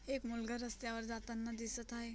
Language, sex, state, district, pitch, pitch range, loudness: Marathi, female, Maharashtra, Chandrapur, 230 Hz, 230-240 Hz, -43 LUFS